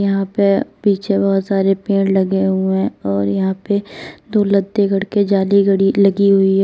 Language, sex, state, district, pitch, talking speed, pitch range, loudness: Hindi, female, Uttar Pradesh, Lalitpur, 195 Hz, 155 wpm, 195-200 Hz, -16 LUFS